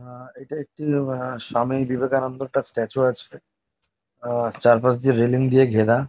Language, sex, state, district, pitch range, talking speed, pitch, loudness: Bengali, male, West Bengal, North 24 Parganas, 120-135 Hz, 150 wpm, 130 Hz, -21 LUFS